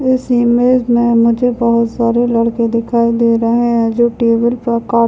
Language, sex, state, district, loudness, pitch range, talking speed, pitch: Hindi, male, Bihar, Muzaffarpur, -13 LUFS, 230-240 Hz, 190 wpm, 235 Hz